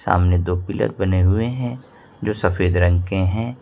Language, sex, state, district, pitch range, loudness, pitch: Hindi, male, Jharkhand, Ranchi, 90-110 Hz, -20 LUFS, 95 Hz